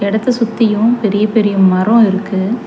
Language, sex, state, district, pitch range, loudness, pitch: Tamil, female, Tamil Nadu, Chennai, 200-230 Hz, -13 LUFS, 215 Hz